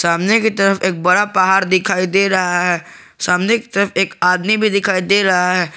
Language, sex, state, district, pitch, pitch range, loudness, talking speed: Hindi, male, Jharkhand, Garhwa, 185 Hz, 180-200 Hz, -15 LUFS, 210 wpm